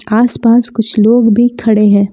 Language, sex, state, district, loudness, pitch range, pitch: Hindi, female, Jharkhand, Palamu, -10 LUFS, 215-235 Hz, 225 Hz